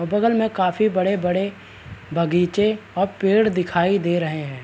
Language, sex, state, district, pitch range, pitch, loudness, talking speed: Hindi, male, Bihar, Araria, 175-205 Hz, 185 Hz, -20 LUFS, 140 wpm